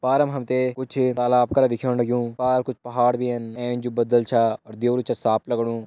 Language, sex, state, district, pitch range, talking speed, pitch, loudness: Hindi, male, Uttarakhand, Tehri Garhwal, 120-125 Hz, 215 wpm, 120 Hz, -22 LUFS